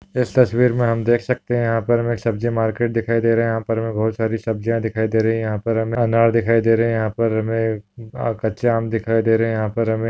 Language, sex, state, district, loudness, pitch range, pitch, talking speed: Hindi, male, Maharashtra, Solapur, -19 LUFS, 110-115 Hz, 115 Hz, 280 wpm